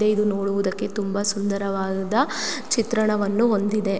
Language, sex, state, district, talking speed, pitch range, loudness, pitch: Kannada, female, Karnataka, Mysore, 105 wpm, 200-215 Hz, -23 LUFS, 205 Hz